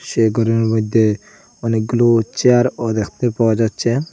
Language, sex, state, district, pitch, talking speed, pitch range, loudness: Bengali, male, Assam, Hailakandi, 115 Hz, 115 wpm, 110-120 Hz, -17 LUFS